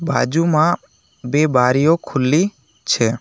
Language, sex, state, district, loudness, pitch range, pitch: Gujarati, male, Gujarat, Navsari, -17 LUFS, 130-165 Hz, 155 Hz